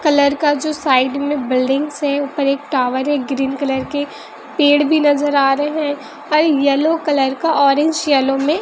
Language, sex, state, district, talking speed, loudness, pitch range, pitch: Hindi, female, Bihar, West Champaran, 190 wpm, -16 LUFS, 275-295 Hz, 285 Hz